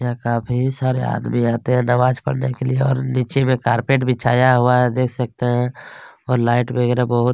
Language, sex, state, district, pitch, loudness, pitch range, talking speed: Hindi, male, Chhattisgarh, Kabirdham, 125 Hz, -18 LUFS, 120-130 Hz, 190 wpm